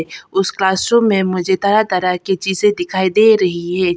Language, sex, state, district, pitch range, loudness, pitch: Hindi, female, Arunachal Pradesh, Papum Pare, 180-200 Hz, -15 LUFS, 190 Hz